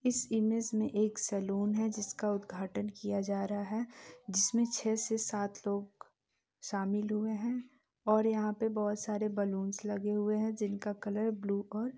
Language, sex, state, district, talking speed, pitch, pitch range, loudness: Hindi, female, Bihar, East Champaran, 165 wpm, 210 Hz, 205-220 Hz, -34 LUFS